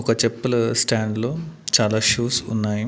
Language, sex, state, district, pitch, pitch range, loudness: Telugu, male, Andhra Pradesh, Annamaya, 115 Hz, 110-120 Hz, -20 LUFS